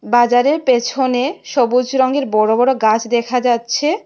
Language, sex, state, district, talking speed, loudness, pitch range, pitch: Bengali, female, Tripura, West Tripura, 135 wpm, -15 LUFS, 235-265 Hz, 250 Hz